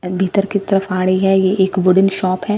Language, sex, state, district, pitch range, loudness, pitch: Hindi, female, Bihar, Katihar, 185-195 Hz, -15 LUFS, 190 Hz